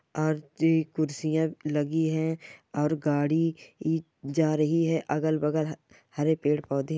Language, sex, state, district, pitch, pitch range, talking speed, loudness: Hindi, female, Bihar, Jamui, 155 Hz, 150-160 Hz, 135 wpm, -28 LUFS